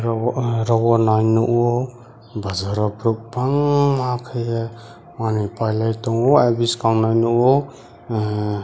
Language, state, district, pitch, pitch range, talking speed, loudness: Kokborok, Tripura, West Tripura, 115 Hz, 110-120 Hz, 110 wpm, -19 LUFS